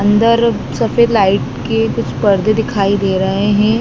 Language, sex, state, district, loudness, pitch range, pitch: Hindi, female, Madhya Pradesh, Dhar, -14 LUFS, 190-225 Hz, 205 Hz